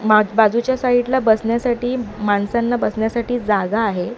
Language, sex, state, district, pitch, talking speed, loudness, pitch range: Marathi, female, Maharashtra, Mumbai Suburban, 230 Hz, 130 wpm, -18 LUFS, 215-245 Hz